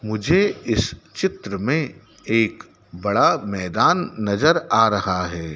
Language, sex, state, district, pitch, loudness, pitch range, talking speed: Hindi, male, Madhya Pradesh, Dhar, 105 Hz, -20 LUFS, 90-115 Hz, 120 wpm